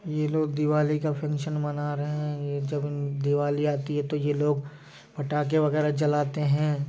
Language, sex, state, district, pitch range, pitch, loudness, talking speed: Hindi, male, Uttar Pradesh, Jyotiba Phule Nagar, 145-150 Hz, 150 Hz, -27 LUFS, 175 wpm